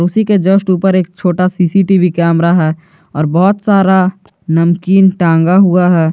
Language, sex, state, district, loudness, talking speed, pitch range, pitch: Hindi, male, Jharkhand, Garhwa, -11 LUFS, 155 wpm, 170-190 Hz, 180 Hz